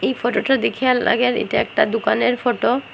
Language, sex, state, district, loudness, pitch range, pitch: Bengali, female, Assam, Hailakandi, -18 LUFS, 240-255 Hz, 245 Hz